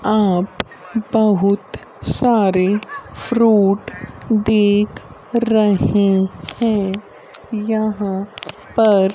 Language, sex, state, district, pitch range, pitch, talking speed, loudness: Hindi, female, Haryana, Rohtak, 195-220 Hz, 210 Hz, 60 wpm, -17 LUFS